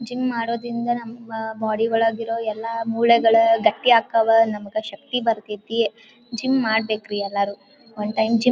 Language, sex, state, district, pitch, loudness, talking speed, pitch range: Kannada, female, Karnataka, Dharwad, 225 Hz, -21 LUFS, 135 wpm, 220-235 Hz